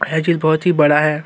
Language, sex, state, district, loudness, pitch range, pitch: Hindi, male, Chhattisgarh, Korba, -15 LUFS, 150-160 Hz, 155 Hz